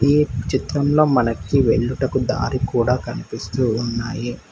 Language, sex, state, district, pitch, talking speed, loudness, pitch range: Telugu, male, Telangana, Hyderabad, 125 Hz, 105 wpm, -20 LUFS, 120-135 Hz